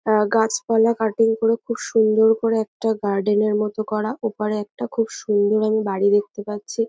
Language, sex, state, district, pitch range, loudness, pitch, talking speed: Bengali, female, West Bengal, North 24 Parganas, 210-225 Hz, -20 LUFS, 215 Hz, 175 wpm